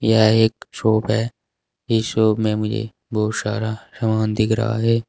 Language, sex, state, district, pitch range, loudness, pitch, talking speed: Hindi, male, Uttar Pradesh, Saharanpur, 110-115 Hz, -20 LUFS, 110 Hz, 165 wpm